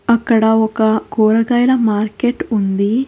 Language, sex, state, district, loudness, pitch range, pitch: Telugu, female, Telangana, Hyderabad, -15 LUFS, 215-240 Hz, 220 Hz